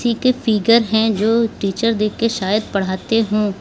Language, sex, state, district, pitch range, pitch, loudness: Hindi, female, Uttar Pradesh, Lalitpur, 205-230 Hz, 220 Hz, -17 LUFS